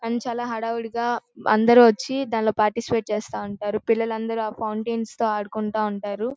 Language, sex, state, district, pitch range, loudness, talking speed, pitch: Telugu, female, Andhra Pradesh, Guntur, 215-235 Hz, -23 LUFS, 130 wpm, 225 Hz